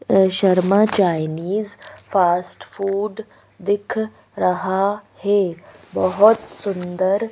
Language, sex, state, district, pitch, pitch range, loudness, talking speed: Hindi, female, Madhya Pradesh, Bhopal, 195 Hz, 185-205 Hz, -20 LUFS, 75 wpm